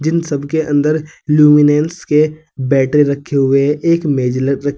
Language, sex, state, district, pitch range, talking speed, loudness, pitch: Hindi, male, Uttar Pradesh, Saharanpur, 140-155 Hz, 175 wpm, -14 LUFS, 150 Hz